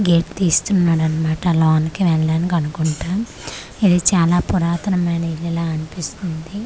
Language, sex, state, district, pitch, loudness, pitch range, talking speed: Telugu, female, Andhra Pradesh, Manyam, 170 Hz, -18 LUFS, 160-180 Hz, 100 wpm